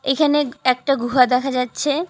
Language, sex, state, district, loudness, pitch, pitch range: Bengali, female, West Bengal, Cooch Behar, -18 LUFS, 270 Hz, 250-295 Hz